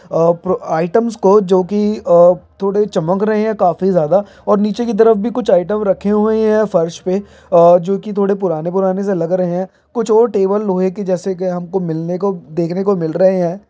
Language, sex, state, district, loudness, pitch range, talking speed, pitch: Hindi, male, Bihar, Saran, -15 LUFS, 180-210 Hz, 215 wpm, 190 Hz